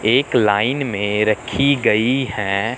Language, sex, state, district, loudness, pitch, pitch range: Hindi, male, Chandigarh, Chandigarh, -17 LUFS, 115 Hz, 105-130 Hz